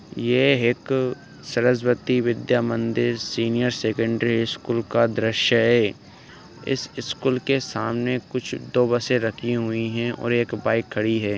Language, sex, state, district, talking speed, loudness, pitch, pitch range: Hindi, male, Uttar Pradesh, Ghazipur, 135 wpm, -22 LUFS, 120 Hz, 115-125 Hz